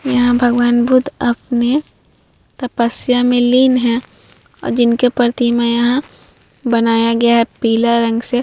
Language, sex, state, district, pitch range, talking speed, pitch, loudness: Hindi, female, Bihar, Vaishali, 235-250 Hz, 130 wpm, 240 Hz, -14 LUFS